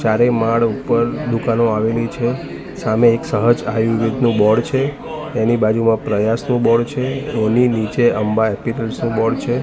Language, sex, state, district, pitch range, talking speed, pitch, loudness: Gujarati, male, Gujarat, Gandhinagar, 110-120 Hz, 150 wpm, 115 Hz, -17 LUFS